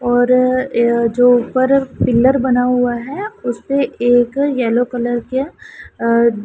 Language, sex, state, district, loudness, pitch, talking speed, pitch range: Hindi, female, Punjab, Pathankot, -15 LUFS, 245 Hz, 140 wpm, 240-265 Hz